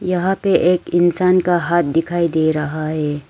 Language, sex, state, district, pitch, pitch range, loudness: Hindi, female, Arunachal Pradesh, Lower Dibang Valley, 170 Hz, 155-180 Hz, -17 LUFS